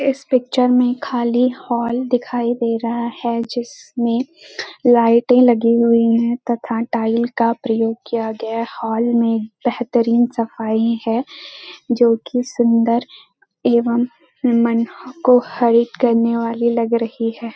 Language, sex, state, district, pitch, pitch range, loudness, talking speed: Hindi, female, Uttarakhand, Uttarkashi, 235 Hz, 230-245 Hz, -17 LUFS, 125 wpm